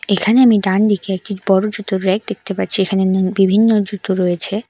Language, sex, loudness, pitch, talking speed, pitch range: Bengali, female, -16 LUFS, 195 Hz, 180 wpm, 190-210 Hz